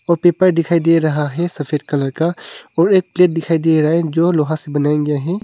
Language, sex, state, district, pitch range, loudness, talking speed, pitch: Hindi, male, Arunachal Pradesh, Longding, 150-170 Hz, -16 LUFS, 230 wpm, 165 Hz